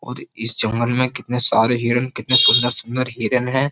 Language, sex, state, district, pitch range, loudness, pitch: Hindi, male, Uttar Pradesh, Jyotiba Phule Nagar, 115-125 Hz, -17 LUFS, 120 Hz